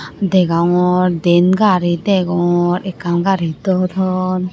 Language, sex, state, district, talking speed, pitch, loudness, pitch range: Chakma, female, Tripura, Unakoti, 95 wpm, 180 Hz, -15 LUFS, 175-185 Hz